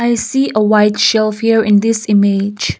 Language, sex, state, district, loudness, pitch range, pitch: English, female, Nagaland, Kohima, -13 LUFS, 210-225 Hz, 215 Hz